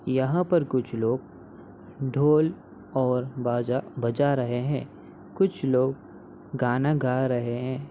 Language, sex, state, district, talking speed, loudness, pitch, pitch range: Hindi, male, Bihar, Samastipur, 120 wpm, -26 LUFS, 130 Hz, 125-140 Hz